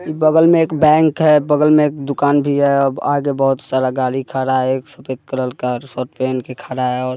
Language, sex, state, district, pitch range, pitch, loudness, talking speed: Hindi, male, Bihar, West Champaran, 130-150 Hz, 135 Hz, -16 LUFS, 235 wpm